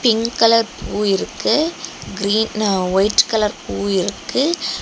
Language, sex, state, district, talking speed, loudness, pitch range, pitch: Tamil, female, Tamil Nadu, Kanyakumari, 110 wpm, -18 LUFS, 200-230 Hz, 215 Hz